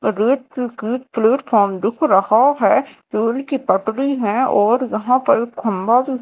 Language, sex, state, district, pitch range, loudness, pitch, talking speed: Hindi, female, Madhya Pradesh, Dhar, 215-260 Hz, -17 LUFS, 235 Hz, 125 wpm